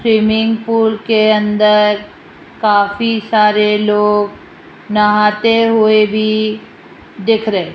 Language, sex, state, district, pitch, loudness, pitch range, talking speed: Hindi, female, Rajasthan, Jaipur, 215 Hz, -13 LUFS, 210-220 Hz, 100 wpm